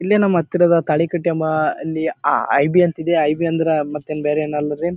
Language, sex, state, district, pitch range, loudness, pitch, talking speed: Kannada, male, Karnataka, Bijapur, 150-170 Hz, -18 LUFS, 160 Hz, 180 wpm